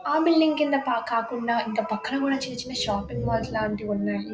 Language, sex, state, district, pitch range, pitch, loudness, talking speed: Telugu, female, Telangana, Nalgonda, 210-270 Hz, 235 Hz, -25 LUFS, 195 wpm